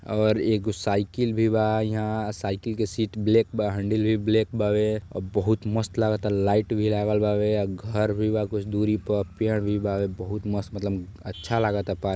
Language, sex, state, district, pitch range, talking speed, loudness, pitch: Bhojpuri, male, Uttar Pradesh, Deoria, 100-110 Hz, 200 wpm, -25 LUFS, 105 Hz